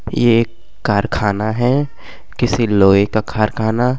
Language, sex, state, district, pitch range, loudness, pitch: Bhojpuri, male, Uttar Pradesh, Gorakhpur, 105-120 Hz, -16 LUFS, 115 Hz